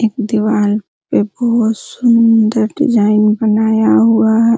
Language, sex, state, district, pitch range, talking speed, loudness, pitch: Hindi, female, Bihar, Araria, 210-230 Hz, 130 wpm, -13 LUFS, 220 Hz